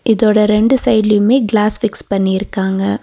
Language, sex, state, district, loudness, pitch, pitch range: Tamil, female, Tamil Nadu, Nilgiris, -13 LUFS, 210 Hz, 195-225 Hz